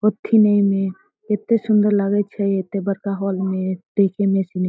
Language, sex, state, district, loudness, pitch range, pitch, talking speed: Maithili, female, Bihar, Darbhanga, -19 LUFS, 195-210 Hz, 200 Hz, 140 wpm